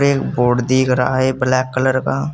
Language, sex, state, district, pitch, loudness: Hindi, male, Uttar Pradesh, Saharanpur, 130 Hz, -16 LUFS